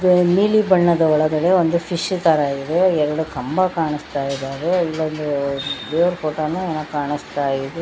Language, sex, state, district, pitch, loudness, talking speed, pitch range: Kannada, female, Karnataka, Bangalore, 155 Hz, -19 LUFS, 125 wpm, 145-175 Hz